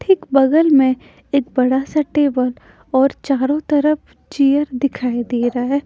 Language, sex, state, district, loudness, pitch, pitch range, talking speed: Hindi, female, Punjab, Pathankot, -17 LUFS, 275 Hz, 255-295 Hz, 155 wpm